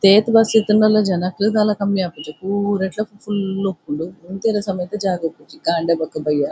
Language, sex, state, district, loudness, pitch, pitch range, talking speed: Tulu, female, Karnataka, Dakshina Kannada, -19 LUFS, 195 Hz, 170-210 Hz, 155 wpm